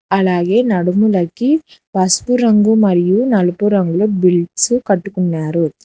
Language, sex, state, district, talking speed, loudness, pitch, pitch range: Telugu, female, Telangana, Hyderabad, 90 wpm, -14 LUFS, 195 Hz, 180-220 Hz